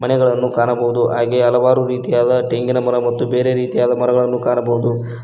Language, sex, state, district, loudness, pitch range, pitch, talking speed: Kannada, male, Karnataka, Koppal, -16 LUFS, 120-125 Hz, 125 Hz, 135 wpm